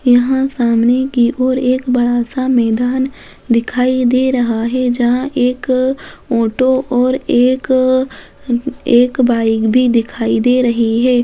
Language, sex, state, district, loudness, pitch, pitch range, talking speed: Hindi, female, Bihar, Muzaffarpur, -14 LUFS, 250 Hz, 240-260 Hz, 130 wpm